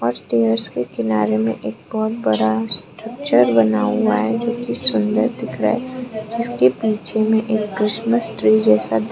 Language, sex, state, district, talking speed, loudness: Hindi, female, Arunachal Pradesh, Lower Dibang Valley, 165 wpm, -18 LUFS